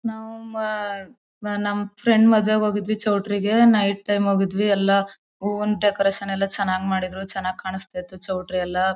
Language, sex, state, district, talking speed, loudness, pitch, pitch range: Kannada, female, Karnataka, Mysore, 140 wpm, -22 LUFS, 200 Hz, 190-210 Hz